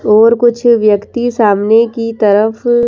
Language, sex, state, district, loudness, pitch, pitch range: Hindi, female, Madhya Pradesh, Bhopal, -11 LUFS, 230 Hz, 210-240 Hz